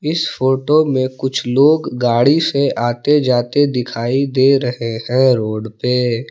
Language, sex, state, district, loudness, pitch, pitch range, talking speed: Hindi, male, Jharkhand, Palamu, -15 LUFS, 130 Hz, 120-145 Hz, 140 wpm